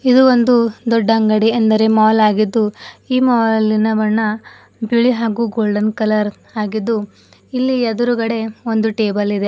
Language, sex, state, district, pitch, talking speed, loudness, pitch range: Kannada, female, Karnataka, Bidar, 220 Hz, 125 wpm, -15 LUFS, 215-235 Hz